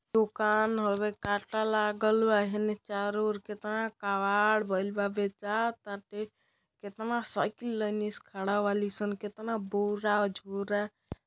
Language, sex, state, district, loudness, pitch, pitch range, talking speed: Bhojpuri, male, Uttar Pradesh, Deoria, -31 LUFS, 210 Hz, 205-215 Hz, 135 wpm